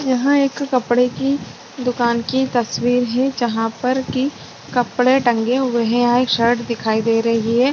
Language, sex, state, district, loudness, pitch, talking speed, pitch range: Hindi, female, Chhattisgarh, Rajnandgaon, -18 LUFS, 245 Hz, 170 wpm, 235-260 Hz